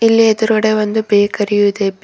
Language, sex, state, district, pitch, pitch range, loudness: Kannada, female, Karnataka, Bidar, 210 Hz, 205-220 Hz, -13 LUFS